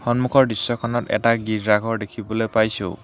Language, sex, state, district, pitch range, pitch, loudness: Assamese, male, Assam, Hailakandi, 110-120 Hz, 115 Hz, -20 LUFS